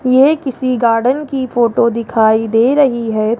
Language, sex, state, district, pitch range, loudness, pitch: Hindi, male, Rajasthan, Jaipur, 230-260 Hz, -13 LUFS, 240 Hz